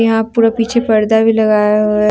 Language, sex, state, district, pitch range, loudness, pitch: Hindi, female, Jharkhand, Deoghar, 215-225 Hz, -12 LUFS, 220 Hz